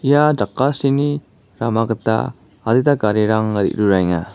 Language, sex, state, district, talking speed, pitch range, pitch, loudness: Garo, male, Meghalaya, West Garo Hills, 95 wpm, 105-140 Hz, 110 Hz, -18 LUFS